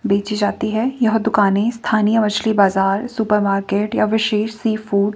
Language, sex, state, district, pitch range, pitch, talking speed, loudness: Hindi, female, Himachal Pradesh, Shimla, 205-220 Hz, 215 Hz, 185 wpm, -18 LUFS